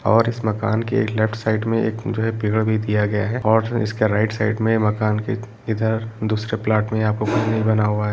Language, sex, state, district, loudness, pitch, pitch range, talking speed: Hindi, male, Uttar Pradesh, Etah, -20 LUFS, 110 Hz, 105-110 Hz, 205 wpm